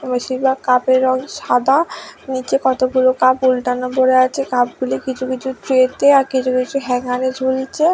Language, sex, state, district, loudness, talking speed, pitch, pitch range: Bengali, female, West Bengal, Dakshin Dinajpur, -16 LUFS, 165 wpm, 260 Hz, 255-265 Hz